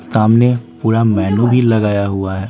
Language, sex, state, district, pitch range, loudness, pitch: Hindi, male, Bihar, Patna, 100-115 Hz, -14 LUFS, 110 Hz